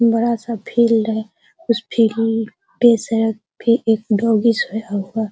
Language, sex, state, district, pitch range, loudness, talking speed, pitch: Hindi, female, Bihar, Araria, 220-230 Hz, -18 LUFS, 145 wpm, 225 Hz